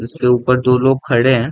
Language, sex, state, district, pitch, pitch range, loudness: Hindi, male, Bihar, Darbhanga, 125 Hz, 125-130 Hz, -14 LUFS